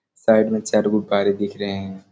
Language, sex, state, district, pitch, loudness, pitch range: Hindi, male, Chhattisgarh, Raigarh, 100 Hz, -20 LUFS, 100-105 Hz